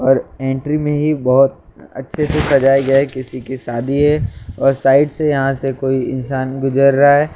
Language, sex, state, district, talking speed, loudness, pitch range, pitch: Hindi, male, Maharashtra, Mumbai Suburban, 205 wpm, -15 LUFS, 130-145 Hz, 135 Hz